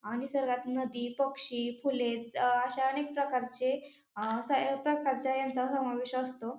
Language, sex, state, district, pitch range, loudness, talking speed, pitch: Marathi, female, Maharashtra, Pune, 245-275 Hz, -33 LUFS, 145 wpm, 255 Hz